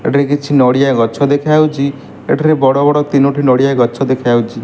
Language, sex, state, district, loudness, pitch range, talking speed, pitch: Odia, male, Odisha, Malkangiri, -12 LUFS, 130-145 Hz, 155 wpm, 140 Hz